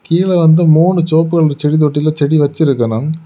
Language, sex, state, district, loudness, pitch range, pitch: Tamil, male, Tamil Nadu, Kanyakumari, -12 LUFS, 150-165 Hz, 155 Hz